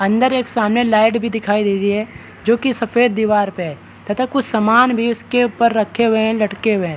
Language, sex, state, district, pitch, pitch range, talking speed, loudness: Hindi, male, Bihar, Araria, 225 Hz, 210-235 Hz, 235 wpm, -16 LUFS